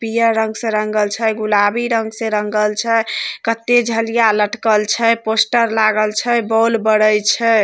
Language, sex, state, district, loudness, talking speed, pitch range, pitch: Maithili, female, Bihar, Samastipur, -16 LUFS, 155 wpm, 215-230 Hz, 225 Hz